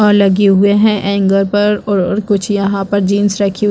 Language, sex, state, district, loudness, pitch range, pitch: Hindi, female, Chhattisgarh, Bastar, -12 LUFS, 195-205 Hz, 200 Hz